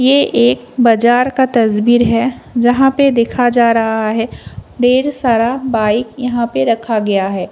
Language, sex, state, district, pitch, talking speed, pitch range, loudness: Hindi, female, Delhi, New Delhi, 235 Hz, 160 wpm, 225-250 Hz, -13 LUFS